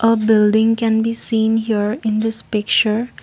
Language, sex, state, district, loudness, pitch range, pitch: English, female, Assam, Kamrup Metropolitan, -17 LUFS, 215-225 Hz, 220 Hz